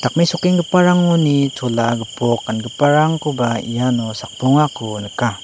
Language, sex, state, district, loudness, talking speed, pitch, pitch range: Garo, male, Meghalaya, West Garo Hills, -17 LUFS, 75 wpm, 125 Hz, 115-155 Hz